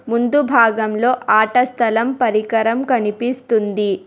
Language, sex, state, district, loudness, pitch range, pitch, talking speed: Telugu, female, Telangana, Hyderabad, -16 LUFS, 215-250 Hz, 230 Hz, 90 wpm